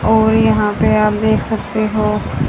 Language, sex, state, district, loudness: Hindi, female, Haryana, Charkhi Dadri, -15 LUFS